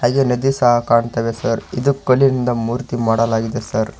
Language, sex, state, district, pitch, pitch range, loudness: Kannada, male, Karnataka, Koppal, 120 Hz, 115-130 Hz, -17 LUFS